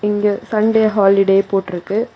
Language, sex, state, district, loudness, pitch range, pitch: Tamil, female, Tamil Nadu, Kanyakumari, -15 LUFS, 195-215 Hz, 205 Hz